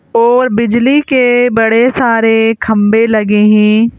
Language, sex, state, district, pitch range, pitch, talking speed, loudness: Hindi, female, Madhya Pradesh, Bhopal, 220-245 Hz, 230 Hz, 120 wpm, -10 LUFS